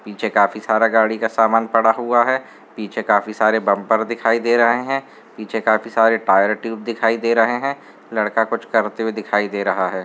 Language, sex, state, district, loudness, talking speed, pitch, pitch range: Hindi, male, Bihar, Gopalganj, -18 LUFS, 205 wpm, 110 Hz, 110-115 Hz